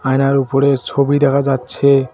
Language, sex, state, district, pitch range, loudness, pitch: Bengali, male, West Bengal, Cooch Behar, 135-140 Hz, -15 LUFS, 135 Hz